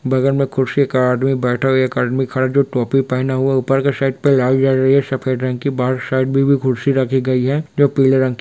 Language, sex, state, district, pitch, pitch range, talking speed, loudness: Hindi, male, Bihar, Sitamarhi, 130 Hz, 130-135 Hz, 280 wpm, -16 LUFS